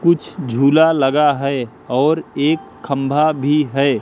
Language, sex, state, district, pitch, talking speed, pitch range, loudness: Hindi, male, Madhya Pradesh, Katni, 145 Hz, 135 wpm, 135-155 Hz, -16 LUFS